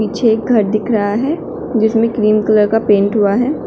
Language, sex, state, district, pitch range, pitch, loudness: Hindi, female, Uttar Pradesh, Shamli, 210-230 Hz, 220 Hz, -14 LUFS